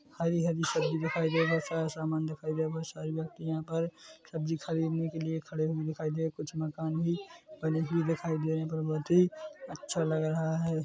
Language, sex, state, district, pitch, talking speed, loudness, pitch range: Hindi, male, Chhattisgarh, Korba, 160 Hz, 245 wpm, -32 LUFS, 160-165 Hz